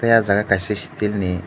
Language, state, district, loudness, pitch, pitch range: Kokborok, Tripura, Dhalai, -19 LUFS, 100 Hz, 95-105 Hz